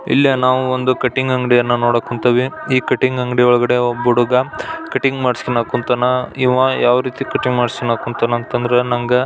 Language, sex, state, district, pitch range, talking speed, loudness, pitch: Kannada, male, Karnataka, Belgaum, 120-130 Hz, 170 wpm, -16 LUFS, 125 Hz